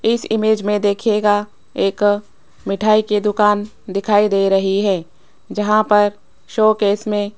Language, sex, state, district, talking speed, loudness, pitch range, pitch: Hindi, female, Rajasthan, Jaipur, 140 wpm, -17 LUFS, 200-215 Hz, 210 Hz